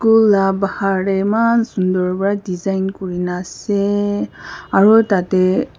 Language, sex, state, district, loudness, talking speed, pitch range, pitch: Nagamese, female, Nagaland, Kohima, -16 LUFS, 135 wpm, 185-205 Hz, 195 Hz